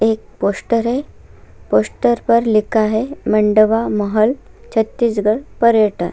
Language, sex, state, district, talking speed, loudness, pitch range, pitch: Hindi, female, Chhattisgarh, Kabirdham, 115 wpm, -16 LUFS, 215-235 Hz, 220 Hz